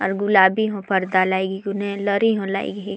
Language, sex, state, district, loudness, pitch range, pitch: Sadri, female, Chhattisgarh, Jashpur, -20 LUFS, 190-205 Hz, 200 Hz